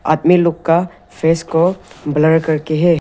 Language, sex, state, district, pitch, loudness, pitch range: Hindi, male, Arunachal Pradesh, Lower Dibang Valley, 165 Hz, -15 LUFS, 160-175 Hz